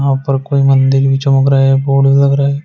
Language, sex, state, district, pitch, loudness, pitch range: Hindi, male, Uttar Pradesh, Shamli, 135 Hz, -11 LUFS, 135-140 Hz